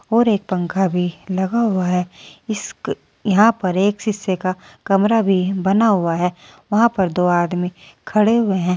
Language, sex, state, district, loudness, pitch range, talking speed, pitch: Hindi, female, Uttar Pradesh, Saharanpur, -18 LUFS, 180-215 Hz, 180 wpm, 190 Hz